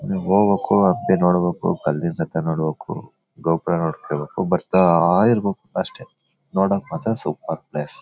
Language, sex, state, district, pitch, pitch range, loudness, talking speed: Kannada, male, Karnataka, Bellary, 95 Hz, 80-105 Hz, -20 LUFS, 110 wpm